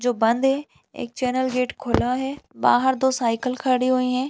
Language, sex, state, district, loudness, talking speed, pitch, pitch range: Hindi, female, Chhattisgarh, Balrampur, -22 LUFS, 195 wpm, 255 Hz, 250-265 Hz